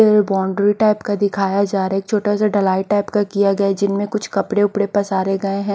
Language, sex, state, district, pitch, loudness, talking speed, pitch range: Hindi, female, Odisha, Khordha, 200 Hz, -18 LUFS, 220 wpm, 195-205 Hz